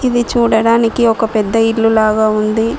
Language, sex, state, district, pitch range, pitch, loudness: Telugu, female, Telangana, Mahabubabad, 220-230 Hz, 225 Hz, -13 LUFS